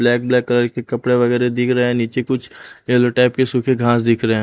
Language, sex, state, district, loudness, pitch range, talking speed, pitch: Hindi, male, Punjab, Pathankot, -17 LUFS, 120-125 Hz, 260 wpm, 120 Hz